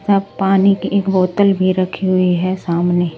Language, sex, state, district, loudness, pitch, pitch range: Hindi, male, Delhi, New Delhi, -15 LUFS, 185 Hz, 180-195 Hz